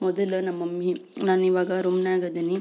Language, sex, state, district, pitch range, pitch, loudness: Kannada, female, Karnataka, Belgaum, 180-185 Hz, 185 Hz, -25 LUFS